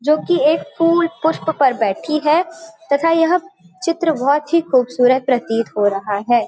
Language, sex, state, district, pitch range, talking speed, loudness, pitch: Hindi, female, Uttar Pradesh, Varanasi, 240-330 Hz, 155 wpm, -17 LUFS, 295 Hz